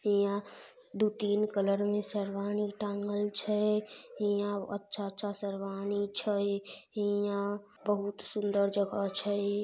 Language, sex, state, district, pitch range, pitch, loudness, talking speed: Maithili, female, Bihar, Samastipur, 200-205 Hz, 205 Hz, -33 LUFS, 105 wpm